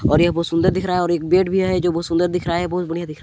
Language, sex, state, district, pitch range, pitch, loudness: Hindi, male, Chhattisgarh, Balrampur, 170-180 Hz, 175 Hz, -19 LUFS